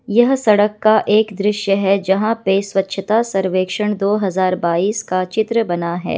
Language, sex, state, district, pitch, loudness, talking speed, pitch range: Hindi, female, Bihar, Kishanganj, 200 Hz, -17 LUFS, 165 wpm, 190-215 Hz